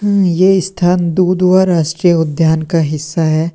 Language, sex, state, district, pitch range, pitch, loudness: Hindi, male, Uttar Pradesh, Lalitpur, 160-185 Hz, 175 Hz, -13 LUFS